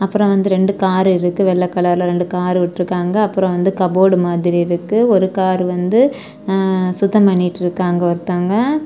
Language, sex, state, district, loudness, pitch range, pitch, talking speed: Tamil, female, Tamil Nadu, Kanyakumari, -15 LUFS, 180-195 Hz, 185 Hz, 155 wpm